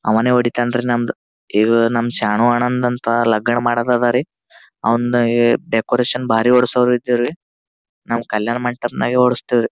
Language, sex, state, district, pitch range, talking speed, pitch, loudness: Kannada, male, Karnataka, Gulbarga, 115-125 Hz, 130 wpm, 120 Hz, -17 LUFS